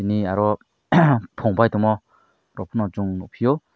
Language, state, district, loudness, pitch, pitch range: Kokborok, Tripura, Dhalai, -21 LUFS, 105 Hz, 100-115 Hz